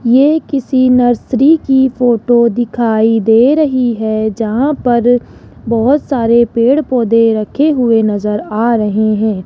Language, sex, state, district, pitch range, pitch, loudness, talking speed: Hindi, male, Rajasthan, Jaipur, 225-260 Hz, 240 Hz, -12 LUFS, 135 wpm